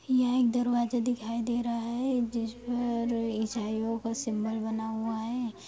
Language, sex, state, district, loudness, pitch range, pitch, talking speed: Hindi, female, Bihar, Darbhanga, -30 LUFS, 225-245 Hz, 235 Hz, 160 wpm